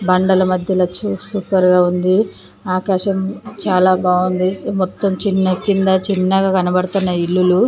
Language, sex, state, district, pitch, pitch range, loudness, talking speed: Telugu, female, Andhra Pradesh, Chittoor, 185 Hz, 185-195 Hz, -16 LUFS, 115 wpm